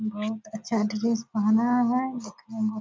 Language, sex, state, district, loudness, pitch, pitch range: Hindi, female, Bihar, Purnia, -26 LUFS, 220 Hz, 215-235 Hz